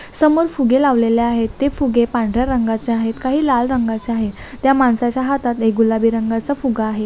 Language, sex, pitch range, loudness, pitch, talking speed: Marathi, female, 225-265 Hz, -17 LUFS, 240 Hz, 170 wpm